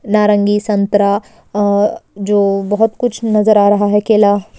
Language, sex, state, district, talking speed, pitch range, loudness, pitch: Hindi, female, Rajasthan, Churu, 155 wpm, 205-210 Hz, -13 LUFS, 205 Hz